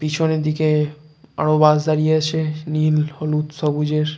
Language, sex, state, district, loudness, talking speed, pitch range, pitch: Bengali, male, West Bengal, Jalpaiguri, -19 LUFS, 130 wpm, 150-155 Hz, 155 Hz